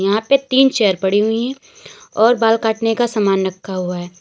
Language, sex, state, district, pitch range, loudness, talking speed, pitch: Hindi, female, Uttar Pradesh, Lalitpur, 190-240 Hz, -16 LUFS, 215 wpm, 220 Hz